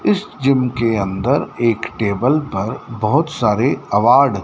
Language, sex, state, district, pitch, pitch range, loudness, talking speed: Hindi, male, Madhya Pradesh, Dhar, 120 Hz, 110-140 Hz, -17 LUFS, 150 wpm